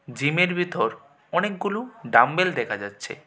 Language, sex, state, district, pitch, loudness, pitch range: Bengali, male, Tripura, West Tripura, 175 Hz, -23 LUFS, 125-185 Hz